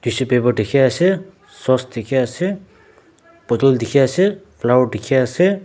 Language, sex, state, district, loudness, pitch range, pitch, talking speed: Nagamese, male, Nagaland, Dimapur, -17 LUFS, 125-190 Hz, 135 Hz, 140 wpm